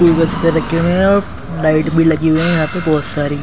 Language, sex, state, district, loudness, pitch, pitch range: Hindi, male, Delhi, New Delhi, -14 LUFS, 165 Hz, 155-170 Hz